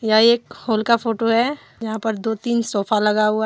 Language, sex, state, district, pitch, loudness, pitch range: Hindi, female, Jharkhand, Deoghar, 225 Hz, -19 LUFS, 215-235 Hz